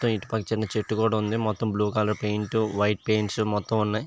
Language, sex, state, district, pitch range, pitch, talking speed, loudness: Telugu, male, Andhra Pradesh, Visakhapatnam, 105-110 Hz, 110 Hz, 175 wpm, -26 LUFS